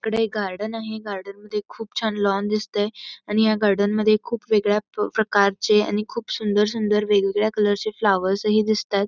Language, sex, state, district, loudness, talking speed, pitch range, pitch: Marathi, female, Karnataka, Belgaum, -22 LUFS, 130 wpm, 205-215 Hz, 210 Hz